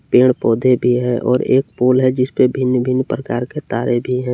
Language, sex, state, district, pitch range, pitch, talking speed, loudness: Hindi, male, Jharkhand, Palamu, 125-130 Hz, 125 Hz, 220 wpm, -16 LUFS